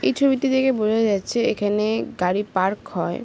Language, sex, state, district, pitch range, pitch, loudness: Bengali, female, West Bengal, Paschim Medinipur, 205-260 Hz, 215 Hz, -21 LUFS